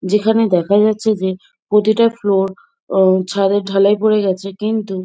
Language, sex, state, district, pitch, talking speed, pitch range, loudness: Bengali, female, West Bengal, Jhargram, 200 Hz, 140 wpm, 190-215 Hz, -15 LUFS